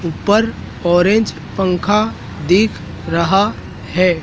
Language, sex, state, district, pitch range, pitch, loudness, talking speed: Hindi, male, Madhya Pradesh, Dhar, 175-210 Hz, 185 Hz, -16 LUFS, 85 wpm